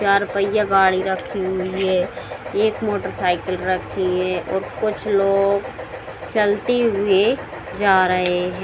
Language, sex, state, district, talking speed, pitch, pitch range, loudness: Hindi, female, Bihar, Saran, 140 wpm, 195 Hz, 185-205 Hz, -20 LUFS